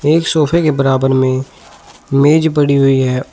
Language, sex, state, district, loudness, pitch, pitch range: Hindi, male, Uttar Pradesh, Shamli, -13 LUFS, 140 Hz, 135-155 Hz